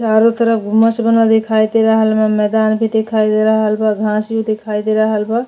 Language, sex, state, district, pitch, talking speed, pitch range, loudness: Bhojpuri, female, Uttar Pradesh, Deoria, 220 Hz, 195 wpm, 215-225 Hz, -14 LUFS